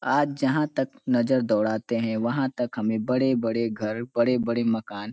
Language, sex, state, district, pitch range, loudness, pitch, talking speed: Hindi, male, Uttar Pradesh, Ghazipur, 110-130 Hz, -25 LUFS, 120 Hz, 165 wpm